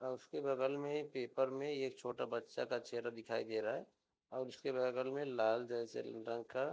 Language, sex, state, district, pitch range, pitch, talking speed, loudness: Hindi, male, Uttar Pradesh, Deoria, 120-135 Hz, 130 Hz, 225 wpm, -41 LUFS